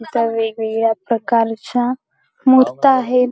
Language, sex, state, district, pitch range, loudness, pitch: Marathi, female, Maharashtra, Chandrapur, 225-260 Hz, -16 LUFS, 240 Hz